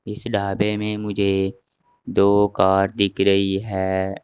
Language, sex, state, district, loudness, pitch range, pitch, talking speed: Hindi, male, Uttar Pradesh, Saharanpur, -20 LUFS, 95-105 Hz, 100 Hz, 130 wpm